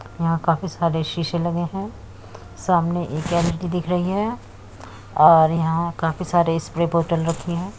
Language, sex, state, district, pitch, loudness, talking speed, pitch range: Hindi, female, Uttar Pradesh, Muzaffarnagar, 170 Hz, -21 LUFS, 160 wpm, 160-175 Hz